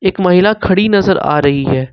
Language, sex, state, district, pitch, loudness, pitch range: Hindi, male, Jharkhand, Ranchi, 185 Hz, -12 LUFS, 140-195 Hz